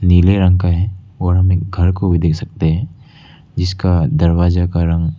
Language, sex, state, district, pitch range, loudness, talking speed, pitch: Hindi, male, Arunachal Pradesh, Lower Dibang Valley, 85-95 Hz, -15 LUFS, 195 wpm, 90 Hz